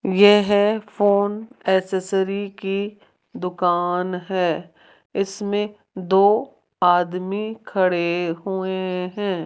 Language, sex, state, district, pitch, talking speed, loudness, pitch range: Hindi, female, Rajasthan, Jaipur, 195 Hz, 75 wpm, -21 LUFS, 180-205 Hz